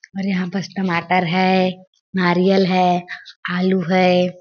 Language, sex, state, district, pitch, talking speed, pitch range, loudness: Hindi, female, Chhattisgarh, Sarguja, 185 Hz, 120 wpm, 180-190 Hz, -18 LUFS